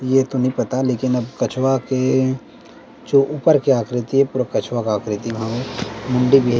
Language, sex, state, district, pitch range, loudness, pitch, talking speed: Chhattisgarhi, male, Chhattisgarh, Rajnandgaon, 120-135 Hz, -19 LUFS, 130 Hz, 180 wpm